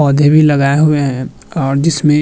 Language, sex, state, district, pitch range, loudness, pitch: Hindi, male, Uttar Pradesh, Muzaffarnagar, 140-150 Hz, -12 LUFS, 145 Hz